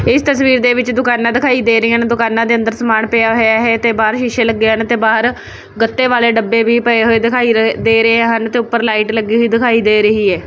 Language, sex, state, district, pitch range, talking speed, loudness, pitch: Punjabi, female, Punjab, Kapurthala, 225-235 Hz, 245 wpm, -12 LUFS, 230 Hz